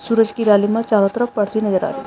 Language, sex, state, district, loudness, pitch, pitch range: Hindi, male, Uttarakhand, Tehri Garhwal, -17 LUFS, 215 Hz, 205-230 Hz